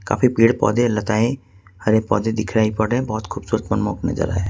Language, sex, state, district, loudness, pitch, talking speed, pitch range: Hindi, male, Jharkhand, Ranchi, -20 LUFS, 110 Hz, 185 wpm, 105-115 Hz